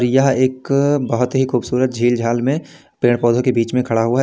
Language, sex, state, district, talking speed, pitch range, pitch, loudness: Hindi, male, Uttar Pradesh, Lalitpur, 225 wpm, 120-135 Hz, 125 Hz, -17 LUFS